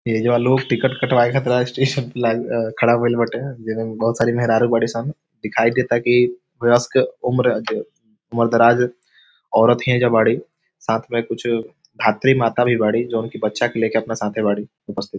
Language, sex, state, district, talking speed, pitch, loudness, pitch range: Bhojpuri, male, Bihar, Saran, 155 wpm, 120 Hz, -19 LUFS, 115-125 Hz